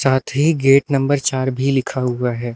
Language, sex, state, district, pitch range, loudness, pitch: Hindi, male, Uttar Pradesh, Lucknow, 130-135 Hz, -17 LUFS, 135 Hz